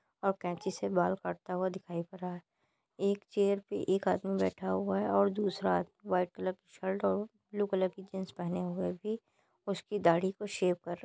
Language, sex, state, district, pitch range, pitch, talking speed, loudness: Hindi, female, Uttar Pradesh, Deoria, 175-200 Hz, 185 Hz, 215 wpm, -34 LUFS